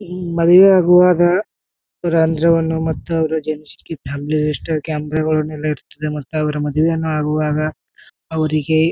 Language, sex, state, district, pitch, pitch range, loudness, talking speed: Kannada, male, Karnataka, Bijapur, 155 Hz, 150-165 Hz, -17 LUFS, 85 wpm